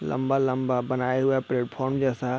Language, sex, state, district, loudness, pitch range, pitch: Hindi, male, Chhattisgarh, Raigarh, -25 LUFS, 125-135 Hz, 130 Hz